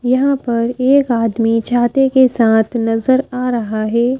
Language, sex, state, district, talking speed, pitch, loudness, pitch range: Hindi, female, Madhya Pradesh, Bhopal, 170 wpm, 240 Hz, -15 LUFS, 230-260 Hz